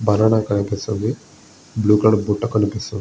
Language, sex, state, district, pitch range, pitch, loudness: Telugu, male, Andhra Pradesh, Visakhapatnam, 105-110 Hz, 105 Hz, -19 LUFS